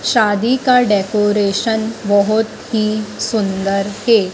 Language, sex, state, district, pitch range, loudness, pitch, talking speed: Hindi, female, Madhya Pradesh, Dhar, 205-225 Hz, -16 LUFS, 215 Hz, 95 wpm